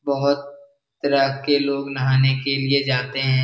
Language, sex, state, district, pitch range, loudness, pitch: Hindi, male, Bihar, Jahanabad, 135-140 Hz, -20 LUFS, 140 Hz